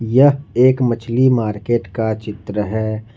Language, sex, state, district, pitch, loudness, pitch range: Hindi, male, Jharkhand, Ranchi, 115 Hz, -17 LUFS, 110-125 Hz